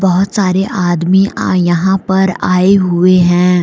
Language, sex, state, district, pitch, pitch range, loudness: Hindi, female, Jharkhand, Deoghar, 185 Hz, 180-190 Hz, -11 LUFS